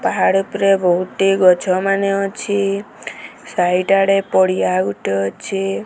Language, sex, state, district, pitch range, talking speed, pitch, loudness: Odia, female, Odisha, Sambalpur, 150-195 Hz, 125 wpm, 195 Hz, -16 LUFS